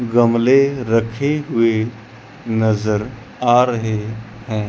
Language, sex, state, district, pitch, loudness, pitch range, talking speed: Hindi, male, Chandigarh, Chandigarh, 115 Hz, -17 LUFS, 110-125 Hz, 90 wpm